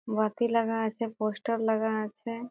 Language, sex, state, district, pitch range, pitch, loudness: Bengali, female, West Bengal, Jhargram, 215-230 Hz, 225 Hz, -30 LUFS